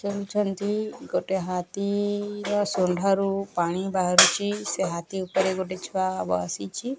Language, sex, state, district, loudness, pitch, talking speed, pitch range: Odia, male, Odisha, Nuapada, -25 LUFS, 195 Hz, 120 wpm, 185-205 Hz